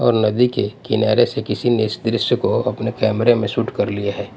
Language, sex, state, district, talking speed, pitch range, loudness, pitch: Hindi, male, Punjab, Pathankot, 235 wpm, 105-120 Hz, -18 LUFS, 110 Hz